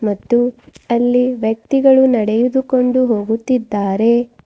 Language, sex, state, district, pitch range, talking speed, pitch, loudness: Kannada, female, Karnataka, Bidar, 220-255 Hz, 65 wpm, 240 Hz, -15 LUFS